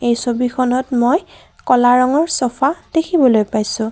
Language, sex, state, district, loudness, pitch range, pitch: Assamese, female, Assam, Kamrup Metropolitan, -15 LUFS, 240-280 Hz, 250 Hz